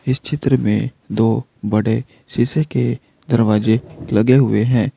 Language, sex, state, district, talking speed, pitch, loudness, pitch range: Hindi, male, Uttar Pradesh, Saharanpur, 135 wpm, 120 Hz, -17 LUFS, 110-130 Hz